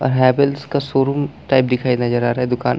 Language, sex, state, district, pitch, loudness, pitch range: Hindi, male, Chhattisgarh, Bastar, 130 Hz, -17 LUFS, 125-140 Hz